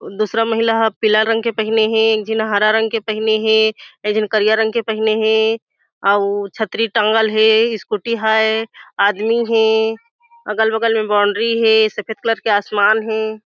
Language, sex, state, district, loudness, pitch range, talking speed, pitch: Chhattisgarhi, female, Chhattisgarh, Jashpur, -16 LUFS, 215-225 Hz, 165 wpm, 220 Hz